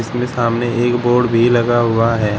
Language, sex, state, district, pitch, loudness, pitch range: Hindi, male, Uttar Pradesh, Shamli, 120 Hz, -15 LUFS, 115-120 Hz